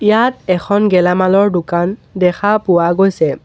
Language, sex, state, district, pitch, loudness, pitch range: Assamese, male, Assam, Sonitpur, 185 Hz, -13 LUFS, 180-205 Hz